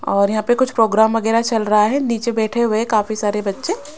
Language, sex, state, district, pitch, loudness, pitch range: Hindi, female, Rajasthan, Jaipur, 225 Hz, -17 LUFS, 215-235 Hz